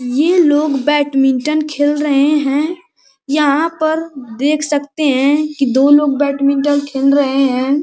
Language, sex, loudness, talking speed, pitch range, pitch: Hindi, male, -14 LUFS, 145 wpm, 275-300 Hz, 290 Hz